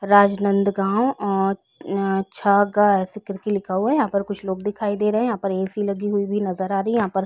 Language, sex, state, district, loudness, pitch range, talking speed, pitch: Hindi, female, Chhattisgarh, Rajnandgaon, -21 LUFS, 195-205 Hz, 240 wpm, 200 Hz